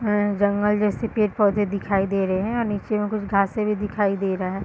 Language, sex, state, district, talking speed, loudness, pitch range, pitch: Hindi, female, Bihar, East Champaran, 245 wpm, -22 LUFS, 195-210 Hz, 205 Hz